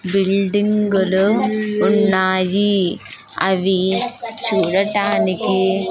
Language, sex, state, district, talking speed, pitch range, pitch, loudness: Telugu, female, Andhra Pradesh, Sri Satya Sai, 50 wpm, 190-210 Hz, 195 Hz, -17 LUFS